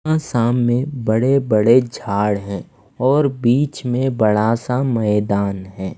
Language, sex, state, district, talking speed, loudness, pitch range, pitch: Hindi, male, Himachal Pradesh, Shimla, 130 wpm, -18 LUFS, 105-130 Hz, 120 Hz